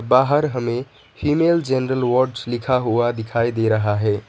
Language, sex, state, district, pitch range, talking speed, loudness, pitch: Hindi, male, West Bengal, Alipurduar, 115-130 Hz, 155 wpm, -20 LUFS, 125 Hz